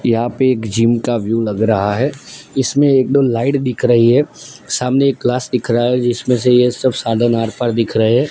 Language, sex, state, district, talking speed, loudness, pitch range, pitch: Hindi, male, Gujarat, Gandhinagar, 230 wpm, -15 LUFS, 115-130 Hz, 120 Hz